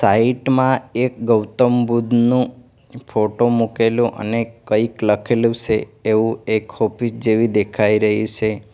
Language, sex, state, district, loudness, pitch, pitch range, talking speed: Gujarati, male, Gujarat, Valsad, -18 LUFS, 115 Hz, 110-120 Hz, 125 wpm